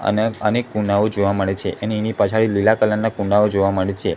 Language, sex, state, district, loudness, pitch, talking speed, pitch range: Gujarati, male, Gujarat, Gandhinagar, -19 LUFS, 105 Hz, 230 wpm, 100-110 Hz